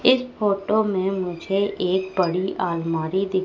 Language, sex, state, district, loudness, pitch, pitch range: Hindi, female, Madhya Pradesh, Katni, -23 LUFS, 190 Hz, 180-205 Hz